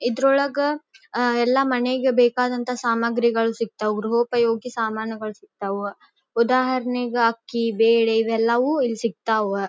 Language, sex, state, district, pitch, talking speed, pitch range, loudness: Kannada, female, Karnataka, Dharwad, 235 Hz, 95 wpm, 225-250 Hz, -22 LUFS